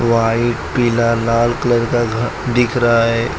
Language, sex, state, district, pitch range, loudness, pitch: Hindi, male, Gujarat, Valsad, 115-120 Hz, -16 LUFS, 120 Hz